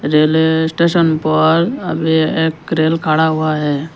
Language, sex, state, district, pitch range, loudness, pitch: Hindi, male, Arunachal Pradesh, Lower Dibang Valley, 155-160 Hz, -14 LUFS, 160 Hz